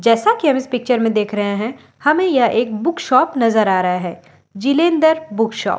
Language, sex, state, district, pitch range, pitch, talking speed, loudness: Hindi, female, Delhi, New Delhi, 210-285 Hz, 230 Hz, 230 wpm, -16 LUFS